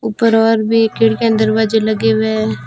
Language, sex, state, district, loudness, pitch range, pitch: Hindi, female, Rajasthan, Jaisalmer, -14 LUFS, 220-225 Hz, 220 Hz